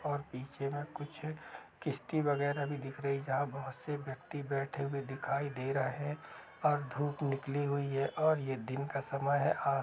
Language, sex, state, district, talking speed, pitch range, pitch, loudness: Hindi, male, Chhattisgarh, Rajnandgaon, 190 wpm, 135-145 Hz, 140 Hz, -36 LUFS